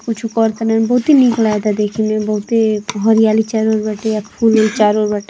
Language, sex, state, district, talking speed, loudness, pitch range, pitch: Hindi, female, Uttar Pradesh, Ghazipur, 240 wpm, -14 LUFS, 215-225 Hz, 220 Hz